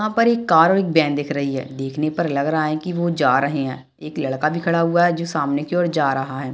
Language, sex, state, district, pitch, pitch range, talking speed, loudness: Hindi, male, Bihar, Kishanganj, 155 Hz, 140-170 Hz, 295 wpm, -19 LUFS